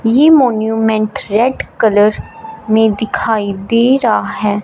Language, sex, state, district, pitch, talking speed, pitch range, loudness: Hindi, female, Punjab, Fazilka, 220 Hz, 115 wpm, 215-240 Hz, -13 LUFS